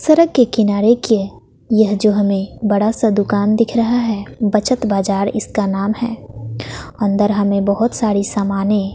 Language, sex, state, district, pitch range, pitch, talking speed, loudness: Hindi, female, Bihar, West Champaran, 200-225 Hz, 210 Hz, 155 wpm, -16 LUFS